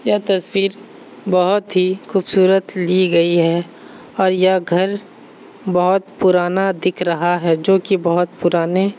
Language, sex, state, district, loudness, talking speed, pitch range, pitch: Hindi, male, Bihar, Saharsa, -16 LUFS, 145 wpm, 175-195 Hz, 185 Hz